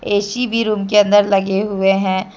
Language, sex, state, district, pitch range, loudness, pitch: Hindi, female, Jharkhand, Deoghar, 195-210 Hz, -15 LUFS, 205 Hz